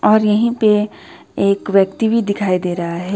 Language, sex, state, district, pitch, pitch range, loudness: Hindi, female, West Bengal, Alipurduar, 200 Hz, 190-215 Hz, -16 LUFS